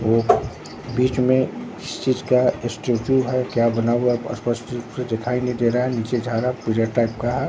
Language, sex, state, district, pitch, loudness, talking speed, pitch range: Hindi, male, Bihar, Katihar, 120 Hz, -21 LUFS, 200 wpm, 115-125 Hz